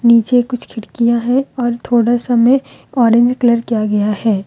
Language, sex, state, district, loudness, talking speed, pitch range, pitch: Hindi, female, Jharkhand, Deoghar, -14 LUFS, 175 wpm, 230-245 Hz, 235 Hz